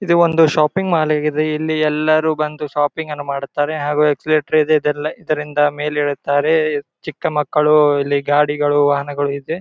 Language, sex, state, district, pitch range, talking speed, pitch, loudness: Kannada, male, Karnataka, Gulbarga, 145-155 Hz, 155 wpm, 150 Hz, -17 LUFS